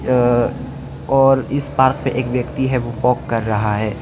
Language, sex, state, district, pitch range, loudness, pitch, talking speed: Hindi, male, Arunachal Pradesh, Lower Dibang Valley, 120-130 Hz, -17 LUFS, 125 Hz, 195 wpm